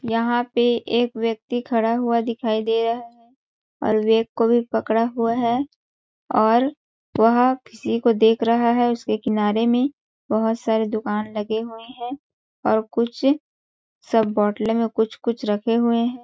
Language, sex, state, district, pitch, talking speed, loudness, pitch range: Hindi, female, Chhattisgarh, Balrampur, 230 Hz, 160 wpm, -21 LUFS, 225-240 Hz